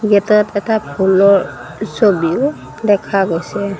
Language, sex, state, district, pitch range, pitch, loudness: Assamese, female, Assam, Sonitpur, 190-210 Hz, 200 Hz, -14 LUFS